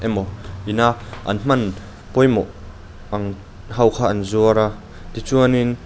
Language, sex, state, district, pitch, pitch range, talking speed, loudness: Mizo, male, Mizoram, Aizawl, 105 Hz, 100-120 Hz, 125 wpm, -19 LUFS